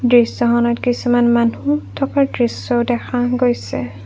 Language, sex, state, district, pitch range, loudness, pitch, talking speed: Assamese, female, Assam, Kamrup Metropolitan, 235-245 Hz, -17 LUFS, 240 Hz, 105 wpm